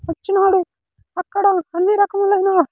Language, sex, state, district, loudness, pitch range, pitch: Telugu, male, Andhra Pradesh, Sri Satya Sai, -17 LUFS, 355-400 Hz, 390 Hz